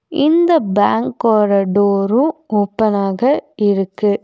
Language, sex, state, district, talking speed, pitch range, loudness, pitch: Tamil, female, Tamil Nadu, Nilgiris, 70 wpm, 200-275 Hz, -15 LUFS, 210 Hz